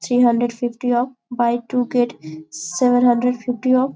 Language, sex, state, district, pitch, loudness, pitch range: Hindi, female, Chhattisgarh, Bastar, 245 Hz, -19 LUFS, 240-250 Hz